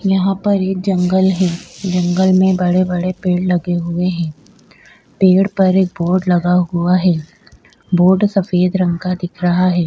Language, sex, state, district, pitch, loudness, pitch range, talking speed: Hindi, female, Goa, North and South Goa, 180 Hz, -15 LUFS, 175-190 Hz, 160 wpm